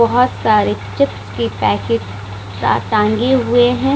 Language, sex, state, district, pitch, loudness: Hindi, female, Bihar, Vaishali, 120 Hz, -16 LUFS